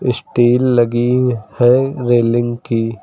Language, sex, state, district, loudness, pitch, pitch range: Hindi, male, Uttar Pradesh, Lucknow, -15 LUFS, 120 Hz, 120-125 Hz